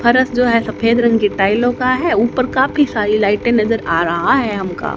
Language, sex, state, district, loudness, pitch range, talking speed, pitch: Hindi, female, Haryana, Jhajjar, -15 LUFS, 210-250 Hz, 215 wpm, 230 Hz